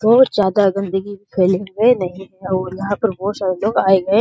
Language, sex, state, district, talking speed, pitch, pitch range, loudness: Hindi, male, Bihar, Jahanabad, 215 wpm, 195 Hz, 190-205 Hz, -17 LUFS